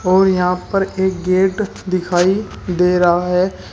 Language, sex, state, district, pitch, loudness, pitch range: Hindi, male, Uttar Pradesh, Shamli, 185 Hz, -16 LUFS, 180-190 Hz